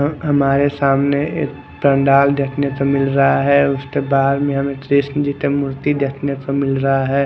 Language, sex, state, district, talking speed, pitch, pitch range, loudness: Hindi, male, Odisha, Khordha, 200 wpm, 140 Hz, 135-140 Hz, -17 LUFS